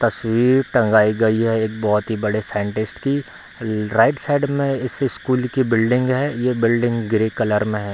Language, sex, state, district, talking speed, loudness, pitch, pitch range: Hindi, male, Bihar, Bhagalpur, 180 wpm, -19 LUFS, 115 Hz, 110-130 Hz